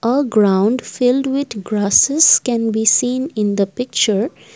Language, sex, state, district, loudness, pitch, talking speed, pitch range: English, female, Assam, Kamrup Metropolitan, -15 LUFS, 230 Hz, 145 wpm, 210-255 Hz